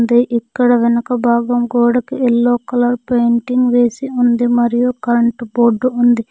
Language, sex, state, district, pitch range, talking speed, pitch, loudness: Telugu, female, Telangana, Mahabubabad, 235-245 Hz, 125 wpm, 240 Hz, -14 LUFS